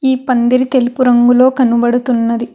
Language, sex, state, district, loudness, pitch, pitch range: Telugu, female, Telangana, Hyderabad, -12 LUFS, 250 Hz, 240-255 Hz